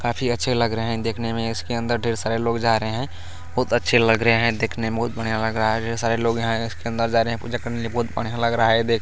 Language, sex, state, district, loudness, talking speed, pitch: Hindi, male, Bihar, Begusarai, -22 LUFS, 310 wpm, 115 Hz